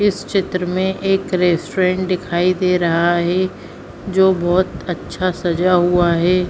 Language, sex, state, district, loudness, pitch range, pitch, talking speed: Hindi, female, Bihar, Begusarai, -17 LUFS, 175-185 Hz, 180 Hz, 140 wpm